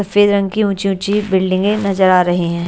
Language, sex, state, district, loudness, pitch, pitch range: Hindi, female, Haryana, Charkhi Dadri, -15 LUFS, 195 Hz, 185-205 Hz